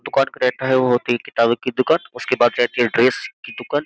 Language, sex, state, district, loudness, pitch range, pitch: Hindi, male, Uttar Pradesh, Jyotiba Phule Nagar, -18 LUFS, 120-130 Hz, 125 Hz